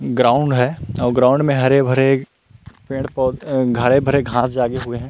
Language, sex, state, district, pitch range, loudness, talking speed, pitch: Hindi, male, Chhattisgarh, Rajnandgaon, 120-135 Hz, -17 LUFS, 175 wpm, 130 Hz